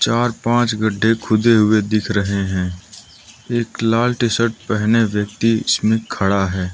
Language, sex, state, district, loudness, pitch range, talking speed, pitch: Hindi, male, Arunachal Pradesh, Lower Dibang Valley, -17 LUFS, 100-115 Hz, 150 wpm, 110 Hz